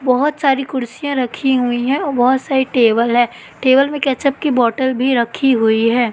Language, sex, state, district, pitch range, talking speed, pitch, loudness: Hindi, female, Madhya Pradesh, Katni, 240-270 Hz, 195 wpm, 260 Hz, -15 LUFS